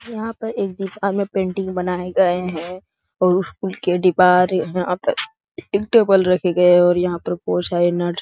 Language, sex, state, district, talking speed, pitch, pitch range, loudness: Hindi, male, Bihar, Jahanabad, 195 wpm, 180 Hz, 180-195 Hz, -18 LUFS